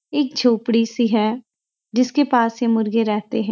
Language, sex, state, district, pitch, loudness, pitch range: Hindi, female, Uttarakhand, Uttarkashi, 230 Hz, -19 LUFS, 225-250 Hz